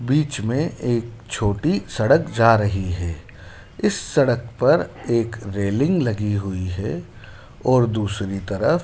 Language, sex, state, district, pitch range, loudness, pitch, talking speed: Hindi, male, Madhya Pradesh, Dhar, 100-125 Hz, -21 LUFS, 115 Hz, 130 wpm